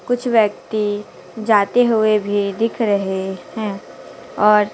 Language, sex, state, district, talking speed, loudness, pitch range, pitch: Hindi, female, Chhattisgarh, Raipur, 115 wpm, -18 LUFS, 205-225 Hz, 210 Hz